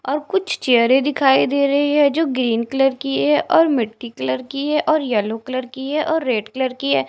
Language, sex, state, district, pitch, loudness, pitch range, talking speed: Hindi, female, Punjab, Fazilka, 270 Hz, -18 LUFS, 245-295 Hz, 230 wpm